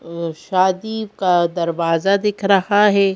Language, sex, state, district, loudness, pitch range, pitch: Hindi, female, Madhya Pradesh, Bhopal, -18 LUFS, 170-205 Hz, 190 Hz